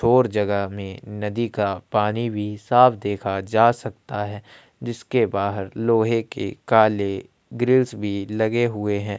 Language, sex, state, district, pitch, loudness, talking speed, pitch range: Hindi, male, Chhattisgarh, Kabirdham, 105 Hz, -22 LUFS, 145 wpm, 100-115 Hz